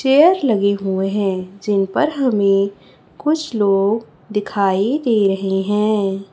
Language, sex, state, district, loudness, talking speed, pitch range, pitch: Hindi, female, Chhattisgarh, Raipur, -17 LUFS, 125 wpm, 195-230 Hz, 200 Hz